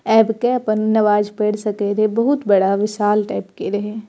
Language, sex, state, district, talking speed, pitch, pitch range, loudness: Maithili, female, Bihar, Purnia, 190 wpm, 215 Hz, 205-220 Hz, -18 LUFS